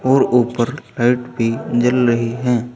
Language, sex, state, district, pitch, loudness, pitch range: Hindi, male, Uttar Pradesh, Saharanpur, 125 Hz, -17 LUFS, 120-125 Hz